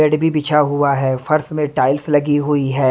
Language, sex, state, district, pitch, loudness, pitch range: Hindi, male, Delhi, New Delhi, 145 Hz, -16 LUFS, 140-150 Hz